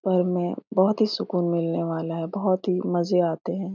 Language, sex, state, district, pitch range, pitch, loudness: Hindi, female, Bihar, Jahanabad, 170-190 Hz, 180 Hz, -24 LUFS